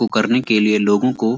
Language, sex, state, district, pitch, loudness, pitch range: Hindi, male, Uttarakhand, Uttarkashi, 110 Hz, -16 LUFS, 105-120 Hz